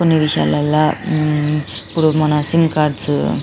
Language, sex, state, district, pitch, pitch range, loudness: Telugu, female, Telangana, Karimnagar, 150 Hz, 145-155 Hz, -16 LUFS